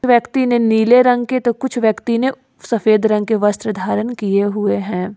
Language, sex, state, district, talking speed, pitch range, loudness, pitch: Hindi, female, Jharkhand, Ranchi, 195 wpm, 210-245 Hz, -16 LUFS, 225 Hz